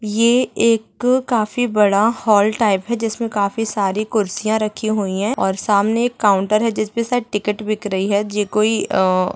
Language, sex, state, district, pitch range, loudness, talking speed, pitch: Hindi, female, Andhra Pradesh, Krishna, 205-230 Hz, -18 LUFS, 165 wpm, 215 Hz